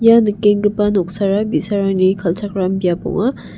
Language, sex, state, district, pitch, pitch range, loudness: Garo, female, Meghalaya, West Garo Hills, 205 Hz, 190-210 Hz, -16 LUFS